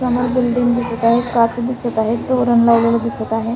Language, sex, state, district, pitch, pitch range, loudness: Marathi, female, Maharashtra, Sindhudurg, 235 Hz, 230-245 Hz, -16 LUFS